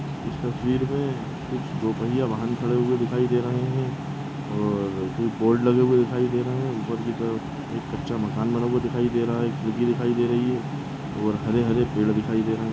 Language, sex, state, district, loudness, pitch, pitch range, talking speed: Hindi, male, Chhattisgarh, Balrampur, -25 LUFS, 120 Hz, 115-125 Hz, 225 wpm